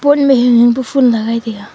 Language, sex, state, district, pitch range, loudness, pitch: Wancho, female, Arunachal Pradesh, Longding, 230-270 Hz, -12 LUFS, 245 Hz